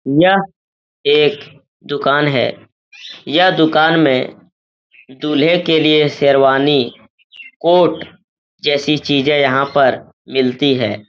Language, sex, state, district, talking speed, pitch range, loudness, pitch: Hindi, male, Uttar Pradesh, Etah, 95 wpm, 135-165 Hz, -14 LUFS, 145 Hz